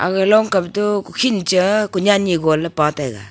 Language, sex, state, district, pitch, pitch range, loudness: Wancho, female, Arunachal Pradesh, Longding, 190 Hz, 165-205 Hz, -17 LUFS